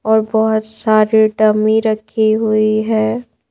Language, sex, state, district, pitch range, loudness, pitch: Hindi, female, Madhya Pradesh, Bhopal, 215-220 Hz, -14 LUFS, 220 Hz